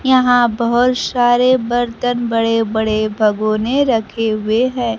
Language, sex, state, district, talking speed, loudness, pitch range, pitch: Hindi, female, Bihar, Kaimur, 120 wpm, -15 LUFS, 220-245 Hz, 235 Hz